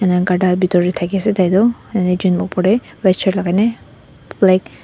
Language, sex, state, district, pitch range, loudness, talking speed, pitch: Nagamese, female, Nagaland, Dimapur, 180-195 Hz, -16 LUFS, 150 wpm, 185 Hz